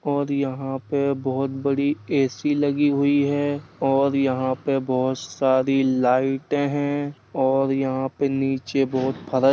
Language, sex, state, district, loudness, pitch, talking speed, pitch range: Bundeli, male, Uttar Pradesh, Jalaun, -22 LUFS, 135 Hz, 145 wpm, 130-140 Hz